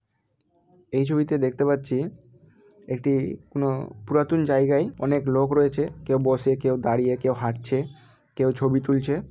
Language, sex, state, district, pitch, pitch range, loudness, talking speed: Bengali, male, West Bengal, Malda, 135 Hz, 130-145 Hz, -24 LUFS, 135 wpm